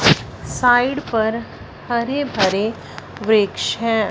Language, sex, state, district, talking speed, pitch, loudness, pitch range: Hindi, female, Punjab, Fazilka, 85 wpm, 225 Hz, -19 LUFS, 215-245 Hz